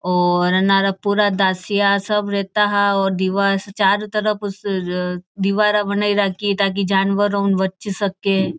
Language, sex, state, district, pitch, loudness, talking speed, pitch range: Marwari, female, Rajasthan, Churu, 200 Hz, -18 LUFS, 145 wpm, 190-205 Hz